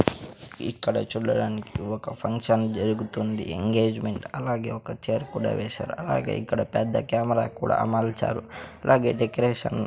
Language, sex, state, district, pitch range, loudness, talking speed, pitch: Telugu, male, Andhra Pradesh, Sri Satya Sai, 110-115 Hz, -26 LUFS, 120 wpm, 115 Hz